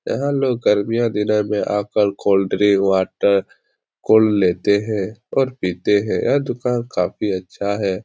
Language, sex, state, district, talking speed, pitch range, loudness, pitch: Hindi, male, Bihar, Supaul, 140 wpm, 100-115 Hz, -19 LUFS, 105 Hz